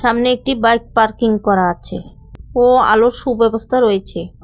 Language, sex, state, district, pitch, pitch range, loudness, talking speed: Bengali, female, West Bengal, Cooch Behar, 230 Hz, 220-250 Hz, -14 LUFS, 135 wpm